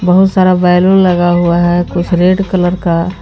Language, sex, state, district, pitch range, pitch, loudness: Hindi, female, Jharkhand, Garhwa, 175-185 Hz, 180 Hz, -10 LUFS